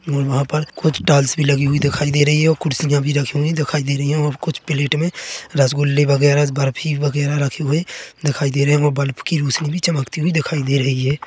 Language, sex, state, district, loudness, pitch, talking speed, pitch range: Hindi, male, Chhattisgarh, Korba, -18 LUFS, 145 Hz, 240 wpm, 140-150 Hz